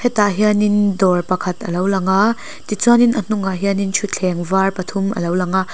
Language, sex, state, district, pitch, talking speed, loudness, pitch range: Mizo, female, Mizoram, Aizawl, 195 Hz, 200 wpm, -17 LUFS, 185-210 Hz